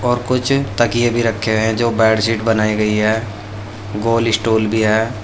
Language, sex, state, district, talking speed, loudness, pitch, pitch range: Hindi, male, Uttar Pradesh, Saharanpur, 185 wpm, -16 LUFS, 110 Hz, 110-115 Hz